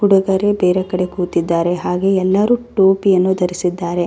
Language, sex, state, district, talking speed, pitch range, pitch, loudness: Kannada, female, Karnataka, Raichur, 120 wpm, 180-195 Hz, 185 Hz, -16 LUFS